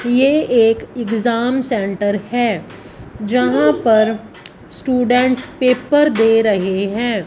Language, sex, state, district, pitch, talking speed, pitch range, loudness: Hindi, female, Punjab, Fazilka, 230 Hz, 100 wpm, 215-250 Hz, -16 LUFS